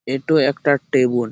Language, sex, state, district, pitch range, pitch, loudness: Bengali, male, West Bengal, Malda, 125-145 Hz, 135 Hz, -18 LUFS